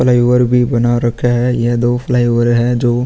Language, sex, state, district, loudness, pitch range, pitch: Hindi, male, Bihar, Vaishali, -13 LUFS, 120-125 Hz, 120 Hz